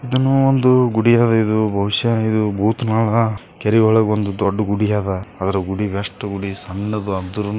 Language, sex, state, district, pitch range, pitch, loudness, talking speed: Kannada, male, Karnataka, Bijapur, 100-115 Hz, 105 Hz, -18 LUFS, 160 wpm